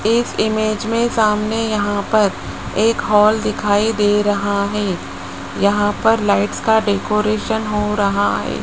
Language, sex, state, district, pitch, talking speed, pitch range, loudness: Hindi, male, Rajasthan, Jaipur, 210 Hz, 140 wpm, 200-215 Hz, -17 LUFS